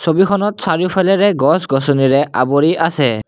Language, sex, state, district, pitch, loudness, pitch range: Assamese, male, Assam, Kamrup Metropolitan, 165 Hz, -14 LUFS, 135-190 Hz